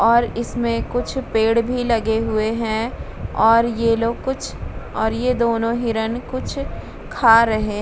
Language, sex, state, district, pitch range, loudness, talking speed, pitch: Hindi, female, Bihar, Vaishali, 225-235 Hz, -19 LUFS, 155 wpm, 230 Hz